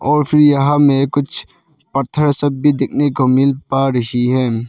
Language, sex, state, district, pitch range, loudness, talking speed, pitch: Hindi, male, Arunachal Pradesh, Lower Dibang Valley, 130-145 Hz, -14 LUFS, 180 wpm, 140 Hz